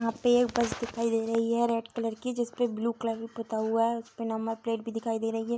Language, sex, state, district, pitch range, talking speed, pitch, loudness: Hindi, female, Bihar, Bhagalpur, 225-235 Hz, 280 wpm, 230 Hz, -30 LUFS